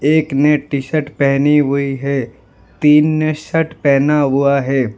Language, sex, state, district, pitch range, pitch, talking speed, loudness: Hindi, male, Gujarat, Valsad, 135-150 Hz, 140 Hz, 155 wpm, -15 LUFS